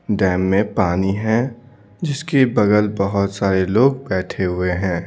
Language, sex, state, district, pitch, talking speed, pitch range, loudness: Hindi, male, Bihar, Patna, 100 Hz, 140 wpm, 95-120 Hz, -18 LUFS